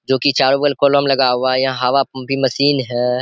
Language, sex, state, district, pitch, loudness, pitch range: Hindi, male, Bihar, Saharsa, 135 Hz, -16 LUFS, 130-140 Hz